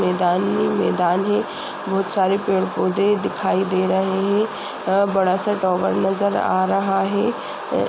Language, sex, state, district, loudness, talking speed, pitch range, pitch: Hindi, male, Uttar Pradesh, Budaun, -20 LUFS, 160 wpm, 185-200 Hz, 195 Hz